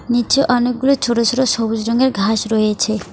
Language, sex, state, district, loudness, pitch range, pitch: Bengali, female, West Bengal, Alipurduar, -16 LUFS, 225-245 Hz, 235 Hz